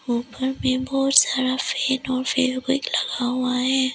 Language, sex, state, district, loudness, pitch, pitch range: Hindi, female, Arunachal Pradesh, Lower Dibang Valley, -21 LUFS, 260 Hz, 255-265 Hz